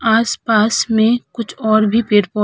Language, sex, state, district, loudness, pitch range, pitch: Hindi, female, Uttar Pradesh, Hamirpur, -15 LUFS, 215-230 Hz, 220 Hz